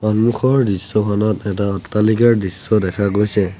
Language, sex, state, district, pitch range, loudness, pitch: Assamese, male, Assam, Sonitpur, 100-110 Hz, -17 LUFS, 105 Hz